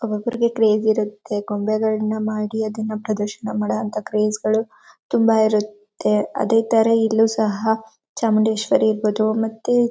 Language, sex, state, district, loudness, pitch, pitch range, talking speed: Kannada, female, Karnataka, Mysore, -20 LUFS, 220 Hz, 215-225 Hz, 110 wpm